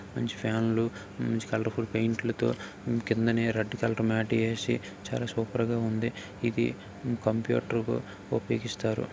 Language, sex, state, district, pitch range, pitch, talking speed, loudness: Telugu, male, Andhra Pradesh, Guntur, 110-115 Hz, 115 Hz, 140 wpm, -30 LUFS